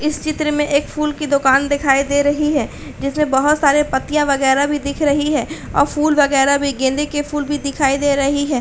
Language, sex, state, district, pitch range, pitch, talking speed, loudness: Hindi, female, Uttar Pradesh, Hamirpur, 275-295 Hz, 285 Hz, 225 wpm, -16 LUFS